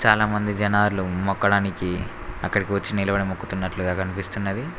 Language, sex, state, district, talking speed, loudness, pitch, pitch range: Telugu, male, Telangana, Mahabubabad, 100 wpm, -23 LUFS, 100 Hz, 95-105 Hz